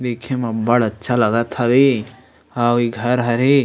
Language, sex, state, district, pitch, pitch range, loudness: Chhattisgarhi, male, Chhattisgarh, Sarguja, 120 Hz, 115-125 Hz, -17 LUFS